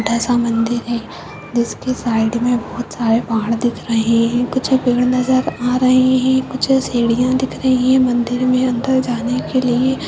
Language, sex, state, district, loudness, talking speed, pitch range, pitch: Hindi, female, Uttarakhand, Tehri Garhwal, -16 LUFS, 180 wpm, 235-255 Hz, 245 Hz